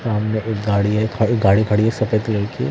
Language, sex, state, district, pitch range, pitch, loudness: Hindi, male, Haryana, Jhajjar, 105-110 Hz, 110 Hz, -18 LUFS